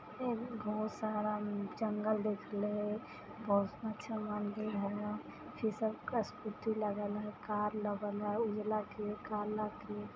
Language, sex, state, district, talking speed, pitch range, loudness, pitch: Hindi, female, Bihar, Samastipur, 60 wpm, 210-215 Hz, -38 LUFS, 210 Hz